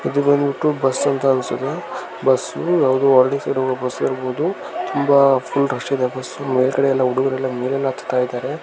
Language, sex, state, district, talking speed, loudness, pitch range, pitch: Kannada, male, Karnataka, Gulbarga, 155 wpm, -19 LUFS, 130-140 Hz, 135 Hz